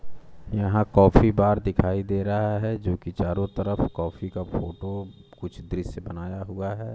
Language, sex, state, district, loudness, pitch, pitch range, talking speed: Hindi, male, Bihar, West Champaran, -25 LUFS, 100 Hz, 90-105 Hz, 165 wpm